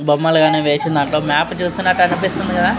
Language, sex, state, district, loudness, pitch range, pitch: Telugu, male, Telangana, Nalgonda, -16 LUFS, 150-180 Hz, 165 Hz